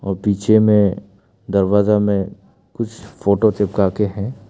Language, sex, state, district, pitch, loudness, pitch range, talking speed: Hindi, male, Arunachal Pradesh, Papum Pare, 105 Hz, -17 LUFS, 100-110 Hz, 135 wpm